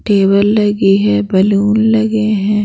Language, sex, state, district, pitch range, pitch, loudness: Hindi, female, Bihar, Patna, 195-215 Hz, 205 Hz, -12 LUFS